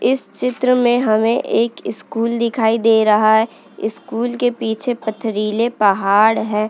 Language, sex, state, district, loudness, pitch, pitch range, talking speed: Hindi, female, Uttarakhand, Uttarkashi, -17 LUFS, 225 Hz, 215-240 Hz, 145 wpm